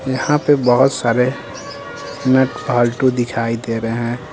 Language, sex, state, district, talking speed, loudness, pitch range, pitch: Hindi, male, Bihar, Patna, 125 wpm, -17 LUFS, 115-130 Hz, 125 Hz